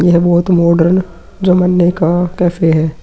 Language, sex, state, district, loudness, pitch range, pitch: Hindi, male, Uttar Pradesh, Muzaffarnagar, -12 LUFS, 170-180 Hz, 175 Hz